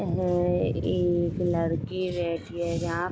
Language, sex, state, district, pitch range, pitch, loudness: Hindi, female, Jharkhand, Sahebganj, 170-180 Hz, 175 Hz, -27 LUFS